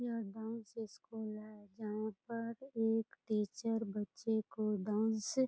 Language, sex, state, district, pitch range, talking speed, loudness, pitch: Hindi, female, Bihar, Purnia, 215-230 Hz, 130 wpm, -40 LUFS, 220 Hz